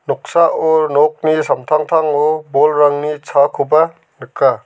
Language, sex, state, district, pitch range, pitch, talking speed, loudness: Garo, male, Meghalaya, South Garo Hills, 145-160 Hz, 155 Hz, 75 wpm, -14 LUFS